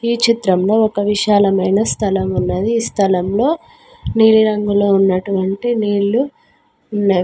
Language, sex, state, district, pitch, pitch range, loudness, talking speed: Telugu, female, Telangana, Mahabubabad, 205 Hz, 195-230 Hz, -15 LUFS, 110 wpm